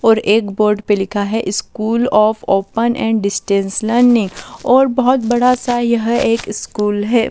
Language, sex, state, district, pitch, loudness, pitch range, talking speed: Hindi, female, Delhi, New Delhi, 225 Hz, -15 LUFS, 205-240 Hz, 165 wpm